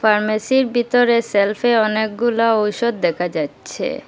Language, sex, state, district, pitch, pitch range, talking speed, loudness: Bengali, female, Assam, Hailakandi, 220 Hz, 210-235 Hz, 105 wpm, -18 LUFS